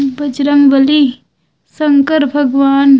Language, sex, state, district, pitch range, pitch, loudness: Chhattisgarhi, female, Chhattisgarh, Raigarh, 275-290 Hz, 280 Hz, -11 LUFS